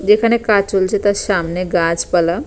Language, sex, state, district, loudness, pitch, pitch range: Bengali, female, West Bengal, Purulia, -16 LUFS, 195 Hz, 175-205 Hz